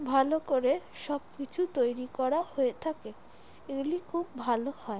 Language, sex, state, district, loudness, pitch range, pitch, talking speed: Bengali, female, West Bengal, Jalpaiguri, -31 LUFS, 255-315 Hz, 275 Hz, 170 wpm